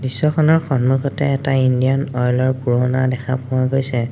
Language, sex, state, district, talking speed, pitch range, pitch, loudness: Assamese, male, Assam, Sonitpur, 145 wpm, 130-135 Hz, 130 Hz, -18 LUFS